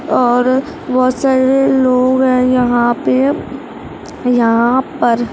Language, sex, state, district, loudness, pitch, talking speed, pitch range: Hindi, female, Rajasthan, Nagaur, -13 LUFS, 255 Hz, 100 wpm, 245-265 Hz